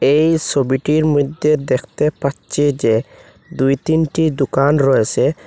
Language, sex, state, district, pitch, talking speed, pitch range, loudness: Bengali, male, Assam, Hailakandi, 145 Hz, 110 wpm, 135-155 Hz, -16 LUFS